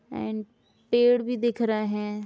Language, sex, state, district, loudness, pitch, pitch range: Hindi, female, Uttar Pradesh, Jalaun, -25 LUFS, 230 Hz, 215-240 Hz